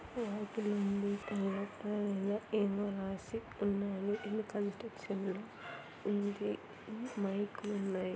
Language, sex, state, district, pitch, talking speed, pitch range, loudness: Telugu, female, Andhra Pradesh, Anantapur, 205 Hz, 65 wpm, 200-210 Hz, -38 LUFS